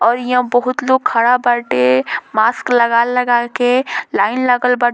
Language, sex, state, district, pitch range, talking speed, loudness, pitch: Bhojpuri, female, Bihar, Muzaffarpur, 235-250 Hz, 160 wpm, -14 LUFS, 245 Hz